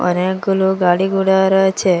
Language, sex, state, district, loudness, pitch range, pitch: Bengali, female, Assam, Hailakandi, -15 LUFS, 185-190 Hz, 190 Hz